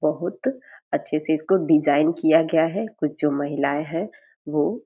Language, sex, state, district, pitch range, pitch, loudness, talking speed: Hindi, female, Bihar, Purnia, 150-170 Hz, 155 Hz, -22 LUFS, 160 wpm